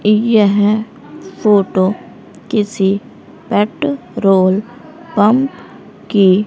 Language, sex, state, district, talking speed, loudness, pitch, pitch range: Hindi, female, Haryana, Rohtak, 55 wpm, -14 LUFS, 210 Hz, 200-235 Hz